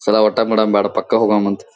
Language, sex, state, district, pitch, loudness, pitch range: Kannada, male, Karnataka, Gulbarga, 105 Hz, -16 LUFS, 100-110 Hz